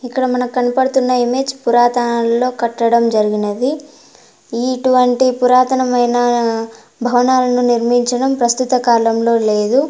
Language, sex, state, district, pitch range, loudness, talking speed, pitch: Telugu, female, Andhra Pradesh, Anantapur, 235-255 Hz, -14 LUFS, 90 wpm, 245 Hz